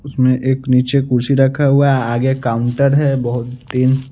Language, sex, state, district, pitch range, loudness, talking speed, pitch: Hindi, male, Bihar, West Champaran, 125-140 Hz, -15 LUFS, 175 wpm, 130 Hz